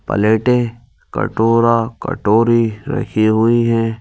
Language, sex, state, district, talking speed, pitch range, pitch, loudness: Hindi, male, Madhya Pradesh, Bhopal, 90 wpm, 110-120 Hz, 115 Hz, -15 LUFS